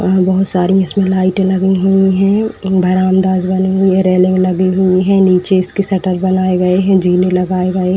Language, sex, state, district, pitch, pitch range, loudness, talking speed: Hindi, female, Uttar Pradesh, Etah, 185 Hz, 185-190 Hz, -12 LUFS, 195 wpm